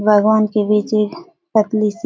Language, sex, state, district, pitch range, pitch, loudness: Hindi, female, Bihar, Supaul, 210-220 Hz, 215 Hz, -16 LUFS